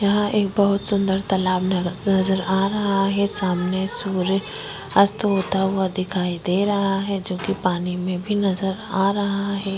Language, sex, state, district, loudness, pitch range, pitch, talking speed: Hindi, female, Chhattisgarh, Korba, -22 LUFS, 185-200 Hz, 195 Hz, 160 wpm